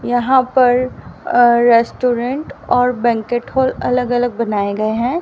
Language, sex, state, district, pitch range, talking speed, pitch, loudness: Hindi, female, Haryana, Rohtak, 235-255 Hz, 125 wpm, 245 Hz, -15 LUFS